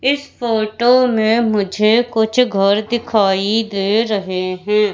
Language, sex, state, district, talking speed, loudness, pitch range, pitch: Hindi, female, Madhya Pradesh, Katni, 120 wpm, -16 LUFS, 200-235 Hz, 220 Hz